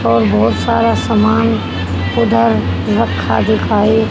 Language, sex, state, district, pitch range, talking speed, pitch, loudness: Hindi, female, Haryana, Rohtak, 95-115 Hz, 100 wpm, 110 Hz, -14 LUFS